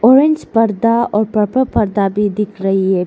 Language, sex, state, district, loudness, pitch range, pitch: Hindi, female, Arunachal Pradesh, Lower Dibang Valley, -15 LUFS, 200-230 Hz, 215 Hz